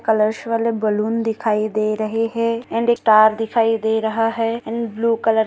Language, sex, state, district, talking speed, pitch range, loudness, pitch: Hindi, female, Maharashtra, Nagpur, 195 wpm, 215-230 Hz, -19 LUFS, 225 Hz